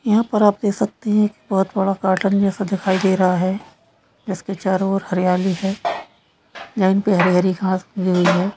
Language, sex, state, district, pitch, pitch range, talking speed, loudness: Hindi, male, Bihar, Gaya, 195 Hz, 185-200 Hz, 175 wpm, -19 LUFS